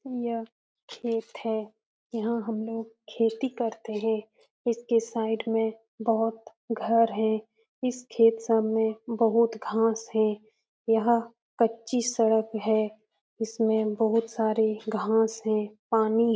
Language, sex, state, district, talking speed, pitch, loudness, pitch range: Hindi, female, Bihar, Jamui, 115 wpm, 225 Hz, -27 LUFS, 220-230 Hz